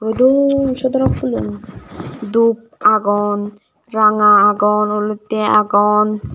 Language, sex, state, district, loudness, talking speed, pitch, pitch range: Chakma, female, Tripura, Dhalai, -15 LUFS, 95 wpm, 210 Hz, 205-230 Hz